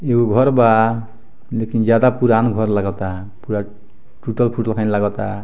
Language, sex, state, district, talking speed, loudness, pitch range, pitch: Bhojpuri, male, Bihar, Muzaffarpur, 130 wpm, -17 LUFS, 105-115 Hz, 110 Hz